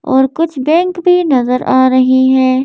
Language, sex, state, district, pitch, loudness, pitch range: Hindi, female, Madhya Pradesh, Bhopal, 260 Hz, -11 LUFS, 260-330 Hz